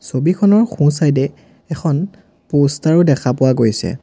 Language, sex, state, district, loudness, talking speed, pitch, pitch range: Assamese, male, Assam, Sonitpur, -15 LUFS, 150 wpm, 150 Hz, 135-170 Hz